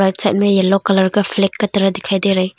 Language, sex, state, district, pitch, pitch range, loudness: Hindi, female, Arunachal Pradesh, Longding, 195 Hz, 190-200 Hz, -15 LUFS